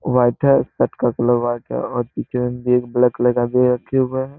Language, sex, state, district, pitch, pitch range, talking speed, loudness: Hindi, male, Bihar, Samastipur, 125 Hz, 120-125 Hz, 245 wpm, -18 LUFS